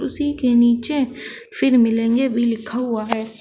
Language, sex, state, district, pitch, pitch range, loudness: Hindi, male, Uttar Pradesh, Shamli, 240 Hz, 230-265 Hz, -18 LUFS